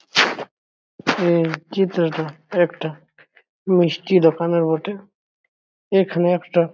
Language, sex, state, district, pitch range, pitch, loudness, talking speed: Bengali, male, West Bengal, Jhargram, 165-190 Hz, 170 Hz, -20 LUFS, 80 wpm